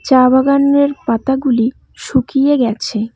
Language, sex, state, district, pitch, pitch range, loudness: Bengali, female, West Bengal, Cooch Behar, 260 Hz, 235-280 Hz, -14 LUFS